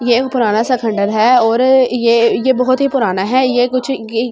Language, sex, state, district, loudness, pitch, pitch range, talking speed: Hindi, female, Delhi, New Delhi, -13 LUFS, 245 Hz, 230-255 Hz, 265 wpm